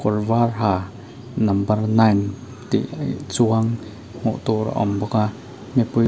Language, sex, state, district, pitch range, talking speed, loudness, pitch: Mizo, male, Mizoram, Aizawl, 105-120 Hz, 140 wpm, -21 LUFS, 110 Hz